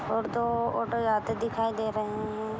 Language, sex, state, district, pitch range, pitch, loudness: Hindi, female, Jharkhand, Jamtara, 215-230 Hz, 225 Hz, -29 LUFS